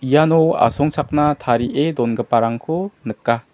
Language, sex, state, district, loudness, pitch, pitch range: Garo, male, Meghalaya, West Garo Hills, -18 LUFS, 145 Hz, 120-155 Hz